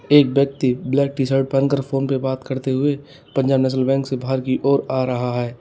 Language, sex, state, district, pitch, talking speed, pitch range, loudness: Hindi, male, Uttar Pradesh, Lalitpur, 135 Hz, 215 wpm, 130-140 Hz, -20 LUFS